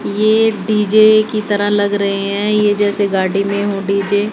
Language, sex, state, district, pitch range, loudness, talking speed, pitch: Hindi, female, Haryana, Jhajjar, 200-215 Hz, -14 LUFS, 195 wpm, 205 Hz